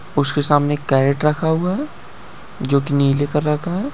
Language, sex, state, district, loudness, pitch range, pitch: Hindi, male, Uttar Pradesh, Budaun, -18 LUFS, 140-160 Hz, 145 Hz